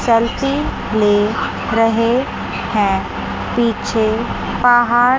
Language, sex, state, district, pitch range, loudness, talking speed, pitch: Hindi, female, Chandigarh, Chandigarh, 220-240 Hz, -16 LUFS, 70 wpm, 230 Hz